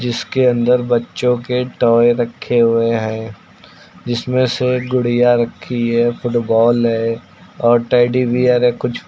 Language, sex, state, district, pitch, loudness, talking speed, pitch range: Hindi, male, Uttar Pradesh, Lucknow, 120 Hz, -15 LUFS, 130 wpm, 115-125 Hz